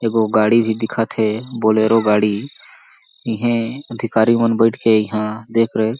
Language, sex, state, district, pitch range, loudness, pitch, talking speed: Chhattisgarhi, male, Chhattisgarh, Jashpur, 110-115 Hz, -17 LUFS, 115 Hz, 150 wpm